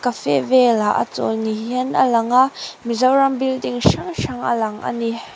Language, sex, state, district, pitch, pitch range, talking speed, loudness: Mizo, female, Mizoram, Aizawl, 240 Hz, 225-255 Hz, 180 wpm, -18 LUFS